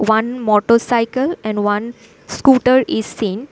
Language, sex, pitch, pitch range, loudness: English, female, 230 Hz, 215-250 Hz, -16 LUFS